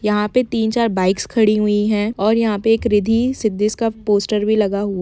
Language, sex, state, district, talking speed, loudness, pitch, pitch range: Hindi, female, Jharkhand, Jamtara, 240 wpm, -17 LUFS, 215 Hz, 205-225 Hz